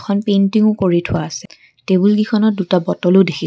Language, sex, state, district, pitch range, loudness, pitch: Assamese, female, Assam, Kamrup Metropolitan, 185-210 Hz, -15 LUFS, 195 Hz